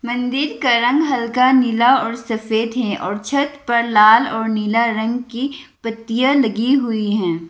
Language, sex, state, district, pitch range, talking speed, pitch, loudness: Hindi, female, Arunachal Pradesh, Lower Dibang Valley, 225-255 Hz, 160 wpm, 235 Hz, -17 LUFS